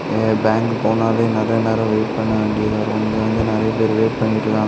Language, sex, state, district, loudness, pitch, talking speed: Tamil, male, Tamil Nadu, Kanyakumari, -18 LUFS, 110 Hz, 190 wpm